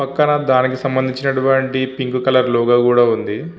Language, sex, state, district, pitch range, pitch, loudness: Telugu, male, Andhra Pradesh, Visakhapatnam, 125-135 Hz, 130 Hz, -16 LUFS